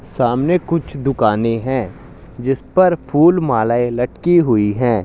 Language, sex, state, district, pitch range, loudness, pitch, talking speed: Hindi, male, Haryana, Jhajjar, 115-165 Hz, -16 LUFS, 130 Hz, 120 wpm